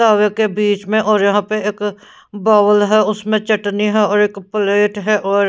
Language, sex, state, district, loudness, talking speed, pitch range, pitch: Hindi, female, Punjab, Pathankot, -15 LUFS, 195 wpm, 205-215 Hz, 210 Hz